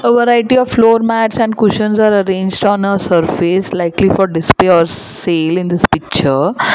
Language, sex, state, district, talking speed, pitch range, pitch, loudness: English, female, Gujarat, Valsad, 170 wpm, 175-225 Hz, 195 Hz, -12 LUFS